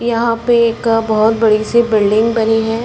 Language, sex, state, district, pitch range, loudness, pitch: Hindi, female, Chhattisgarh, Bastar, 220-235 Hz, -13 LUFS, 225 Hz